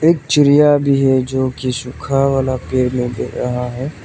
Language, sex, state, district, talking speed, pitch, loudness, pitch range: Hindi, male, Arunachal Pradesh, Lower Dibang Valley, 190 wpm, 130 Hz, -16 LUFS, 125-140 Hz